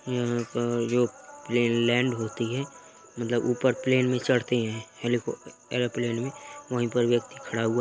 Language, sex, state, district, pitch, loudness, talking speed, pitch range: Hindi, male, Uttar Pradesh, Etah, 120 Hz, -27 LUFS, 155 wpm, 120-125 Hz